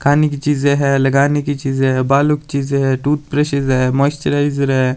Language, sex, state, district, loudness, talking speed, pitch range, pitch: Hindi, male, Himachal Pradesh, Shimla, -16 LUFS, 195 wpm, 135-145 Hz, 140 Hz